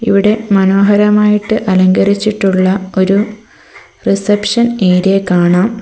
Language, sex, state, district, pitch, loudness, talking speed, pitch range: Malayalam, female, Kerala, Kollam, 205 Hz, -11 LUFS, 70 wpm, 190-215 Hz